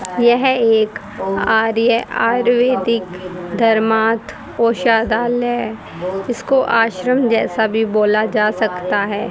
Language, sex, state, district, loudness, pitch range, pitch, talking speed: Hindi, female, Haryana, Rohtak, -16 LUFS, 210-240 Hz, 225 Hz, 85 wpm